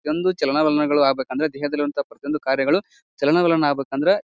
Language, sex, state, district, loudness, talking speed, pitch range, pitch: Kannada, male, Karnataka, Bijapur, -21 LUFS, 155 wpm, 140-165 Hz, 150 Hz